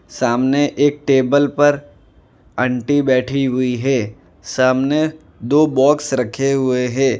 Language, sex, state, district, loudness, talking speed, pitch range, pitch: Hindi, male, Gujarat, Valsad, -16 LUFS, 115 wpm, 125-145 Hz, 135 Hz